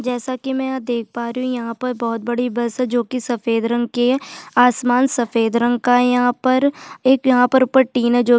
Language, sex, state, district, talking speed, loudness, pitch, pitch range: Hindi, female, Chhattisgarh, Jashpur, 245 wpm, -18 LUFS, 245 Hz, 240-255 Hz